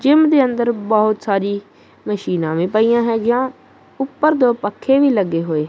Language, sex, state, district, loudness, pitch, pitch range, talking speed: Punjabi, female, Punjab, Kapurthala, -17 LUFS, 230 Hz, 200-260 Hz, 160 wpm